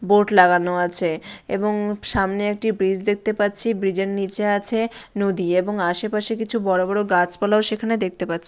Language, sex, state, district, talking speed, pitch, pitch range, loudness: Bengali, female, West Bengal, Dakshin Dinajpur, 160 wpm, 205 Hz, 185-210 Hz, -20 LUFS